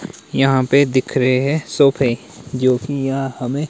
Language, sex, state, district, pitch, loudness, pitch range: Hindi, male, Himachal Pradesh, Shimla, 135 Hz, -17 LUFS, 130-140 Hz